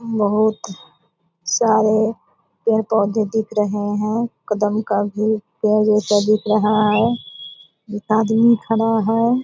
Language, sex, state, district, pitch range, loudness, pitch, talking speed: Hindi, female, Bihar, Purnia, 205-220 Hz, -18 LUFS, 215 Hz, 140 wpm